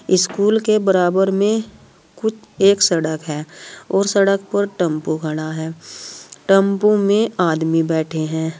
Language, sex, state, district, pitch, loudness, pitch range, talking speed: Hindi, female, Uttar Pradesh, Saharanpur, 185 Hz, -17 LUFS, 160-200 Hz, 135 wpm